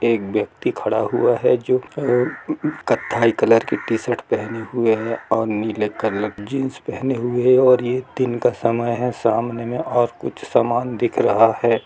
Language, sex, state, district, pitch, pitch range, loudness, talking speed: Hindi, male, Jharkhand, Jamtara, 120 Hz, 110-125 Hz, -20 LUFS, 185 wpm